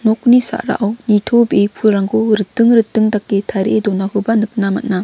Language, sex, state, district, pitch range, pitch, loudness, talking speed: Garo, female, Meghalaya, West Garo Hills, 205-230 Hz, 215 Hz, -14 LUFS, 130 wpm